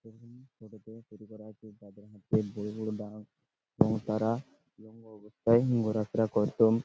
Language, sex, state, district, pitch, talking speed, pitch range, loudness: Bengali, male, West Bengal, Purulia, 110 Hz, 50 wpm, 105-115 Hz, -30 LUFS